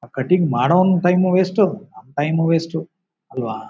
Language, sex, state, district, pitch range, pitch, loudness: Kannada, male, Karnataka, Bijapur, 135-185 Hz, 165 Hz, -18 LUFS